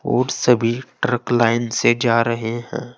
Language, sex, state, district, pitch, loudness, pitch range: Hindi, male, Uttar Pradesh, Saharanpur, 120 Hz, -19 LUFS, 115-125 Hz